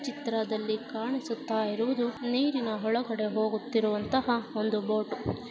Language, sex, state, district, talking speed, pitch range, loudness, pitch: Kannada, female, Karnataka, Dakshina Kannada, 110 wpm, 215-245 Hz, -30 LUFS, 225 Hz